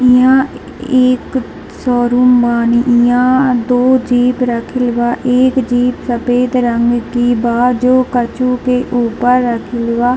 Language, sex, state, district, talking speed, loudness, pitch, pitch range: Hindi, female, Bihar, Darbhanga, 145 wpm, -13 LUFS, 245 Hz, 240-255 Hz